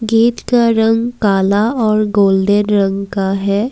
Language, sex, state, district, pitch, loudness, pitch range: Hindi, female, Assam, Kamrup Metropolitan, 210 Hz, -14 LUFS, 200-225 Hz